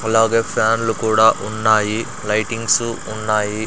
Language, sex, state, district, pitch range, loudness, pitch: Telugu, male, Andhra Pradesh, Sri Satya Sai, 110-115 Hz, -17 LUFS, 110 Hz